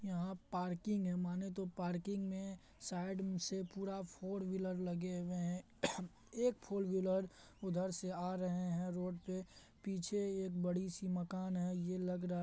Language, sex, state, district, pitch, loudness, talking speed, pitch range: Hindi, male, Bihar, Madhepura, 185 Hz, -42 LUFS, 160 wpm, 180-190 Hz